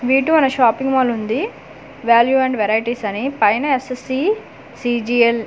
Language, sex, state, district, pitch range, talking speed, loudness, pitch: Telugu, female, Andhra Pradesh, Manyam, 235-265 Hz, 140 wpm, -17 LUFS, 245 Hz